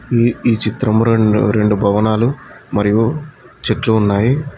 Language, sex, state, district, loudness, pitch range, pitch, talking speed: Telugu, male, Telangana, Mahabubabad, -15 LUFS, 105-125 Hz, 110 Hz, 120 wpm